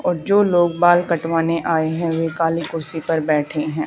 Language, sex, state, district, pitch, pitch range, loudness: Hindi, female, Haryana, Charkhi Dadri, 165 Hz, 160-170 Hz, -19 LUFS